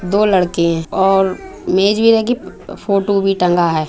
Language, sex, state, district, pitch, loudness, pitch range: Bundeli, female, Uttar Pradesh, Budaun, 195 Hz, -15 LUFS, 180-210 Hz